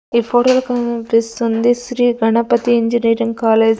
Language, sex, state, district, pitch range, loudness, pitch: Telugu, female, Andhra Pradesh, Sri Satya Sai, 230-240 Hz, -15 LUFS, 235 Hz